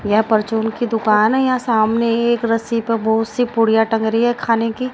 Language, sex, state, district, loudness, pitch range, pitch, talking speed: Hindi, female, Odisha, Nuapada, -17 LUFS, 220-235 Hz, 225 Hz, 220 wpm